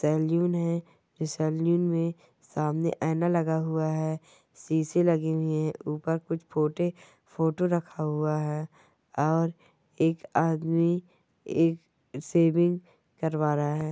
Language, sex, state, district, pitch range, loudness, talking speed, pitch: Hindi, male, West Bengal, Malda, 155-170 Hz, -28 LUFS, 115 wpm, 160 Hz